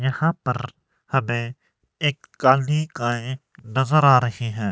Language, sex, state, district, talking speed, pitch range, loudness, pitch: Hindi, male, Himachal Pradesh, Shimla, 100 wpm, 120-140 Hz, -21 LUFS, 130 Hz